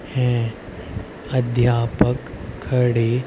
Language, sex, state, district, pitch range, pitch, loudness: Hindi, male, Haryana, Rohtak, 115-125 Hz, 120 Hz, -20 LUFS